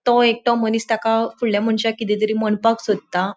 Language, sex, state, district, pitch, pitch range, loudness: Konkani, female, Goa, North and South Goa, 225 Hz, 215-230 Hz, -19 LUFS